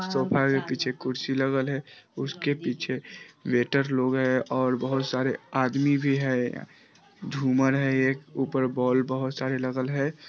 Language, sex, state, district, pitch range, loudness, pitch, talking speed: Hindi, male, Bihar, Vaishali, 130-135 Hz, -26 LUFS, 130 Hz, 150 wpm